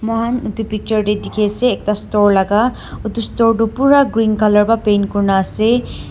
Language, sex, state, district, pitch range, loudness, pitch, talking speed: Nagamese, female, Nagaland, Dimapur, 210-230 Hz, -15 LUFS, 215 Hz, 195 wpm